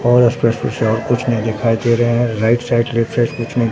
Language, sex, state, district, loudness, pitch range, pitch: Hindi, male, Bihar, Katihar, -16 LUFS, 115-120 Hz, 115 Hz